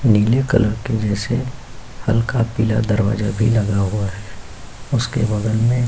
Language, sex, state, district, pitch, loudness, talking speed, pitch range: Hindi, male, Uttar Pradesh, Jyotiba Phule Nagar, 110 Hz, -19 LUFS, 155 wpm, 105-120 Hz